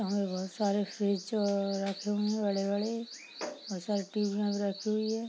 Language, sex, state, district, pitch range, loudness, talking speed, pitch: Hindi, female, Uttar Pradesh, Hamirpur, 200-215 Hz, -33 LUFS, 145 wpm, 205 Hz